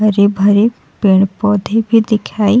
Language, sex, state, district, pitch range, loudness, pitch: Hindi, female, Uttar Pradesh, Jalaun, 200-220 Hz, -13 LUFS, 210 Hz